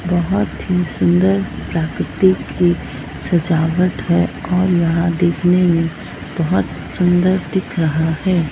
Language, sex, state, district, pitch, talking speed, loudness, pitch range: Hindi, male, Chhattisgarh, Raipur, 175 Hz, 115 wpm, -17 LUFS, 160-180 Hz